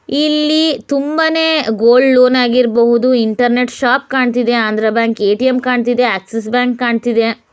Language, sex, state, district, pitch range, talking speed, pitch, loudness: Kannada, female, Karnataka, Bellary, 235-260 Hz, 120 wpm, 245 Hz, -13 LUFS